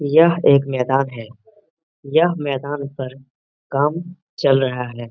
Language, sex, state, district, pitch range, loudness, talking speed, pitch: Hindi, male, Bihar, Jamui, 130-165 Hz, -19 LUFS, 130 wpm, 140 Hz